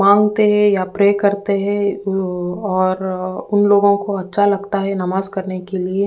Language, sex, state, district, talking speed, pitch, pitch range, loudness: Hindi, female, Uttar Pradesh, Ghazipur, 180 wpm, 200 Hz, 185-205 Hz, -17 LUFS